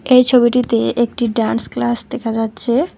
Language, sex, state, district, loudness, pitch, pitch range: Bengali, female, West Bengal, Alipurduar, -16 LUFS, 240 Hz, 230-250 Hz